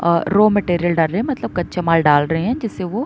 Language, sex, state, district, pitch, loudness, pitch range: Hindi, female, Uttar Pradesh, Muzaffarnagar, 180 Hz, -17 LUFS, 165-215 Hz